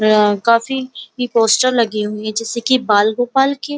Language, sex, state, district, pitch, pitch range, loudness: Hindi, female, Uttar Pradesh, Muzaffarnagar, 230 Hz, 215-255 Hz, -16 LUFS